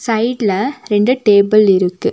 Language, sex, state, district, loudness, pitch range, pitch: Tamil, female, Tamil Nadu, Nilgiris, -13 LUFS, 200-235 Hz, 210 Hz